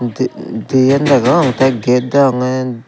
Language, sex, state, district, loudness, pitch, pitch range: Chakma, male, Tripura, Dhalai, -13 LUFS, 130 Hz, 125-135 Hz